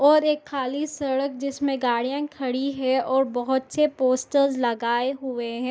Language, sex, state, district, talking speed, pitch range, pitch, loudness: Hindi, female, Chhattisgarh, Bastar, 155 wpm, 255-280 Hz, 265 Hz, -24 LUFS